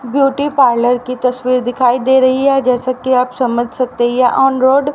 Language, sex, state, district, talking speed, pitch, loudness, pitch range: Hindi, female, Haryana, Rohtak, 220 wpm, 255 Hz, -13 LUFS, 245-265 Hz